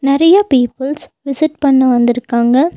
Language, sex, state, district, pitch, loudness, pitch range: Tamil, female, Tamil Nadu, Nilgiris, 275 Hz, -13 LUFS, 250-290 Hz